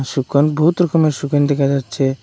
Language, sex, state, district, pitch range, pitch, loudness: Bengali, male, Assam, Hailakandi, 135-155 Hz, 145 Hz, -16 LUFS